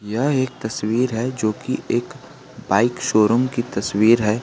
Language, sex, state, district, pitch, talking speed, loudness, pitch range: Hindi, male, Jharkhand, Garhwa, 115 Hz, 160 wpm, -20 LUFS, 110-125 Hz